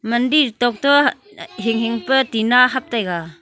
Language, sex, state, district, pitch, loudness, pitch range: Wancho, female, Arunachal Pradesh, Longding, 240 Hz, -17 LUFS, 225-260 Hz